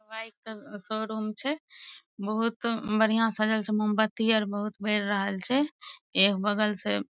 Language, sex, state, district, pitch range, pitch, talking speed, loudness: Maithili, female, Bihar, Madhepura, 210-225 Hz, 215 Hz, 150 wpm, -27 LUFS